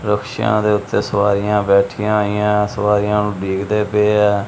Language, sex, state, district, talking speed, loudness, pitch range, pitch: Punjabi, male, Punjab, Kapurthala, 145 wpm, -16 LUFS, 100-105 Hz, 105 Hz